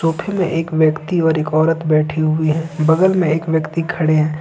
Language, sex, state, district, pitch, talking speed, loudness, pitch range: Hindi, male, Jharkhand, Ranchi, 160 Hz, 215 wpm, -16 LUFS, 155-165 Hz